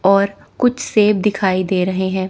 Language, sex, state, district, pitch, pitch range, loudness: Hindi, female, Chandigarh, Chandigarh, 195 Hz, 190-210 Hz, -17 LUFS